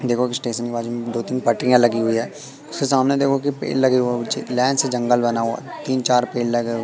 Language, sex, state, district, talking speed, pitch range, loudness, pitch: Hindi, male, Madhya Pradesh, Katni, 255 wpm, 120-130 Hz, -20 LUFS, 120 Hz